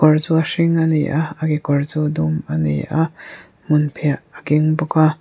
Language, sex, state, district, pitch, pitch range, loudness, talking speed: Mizo, female, Mizoram, Aizawl, 155 Hz, 150-160 Hz, -18 LUFS, 230 wpm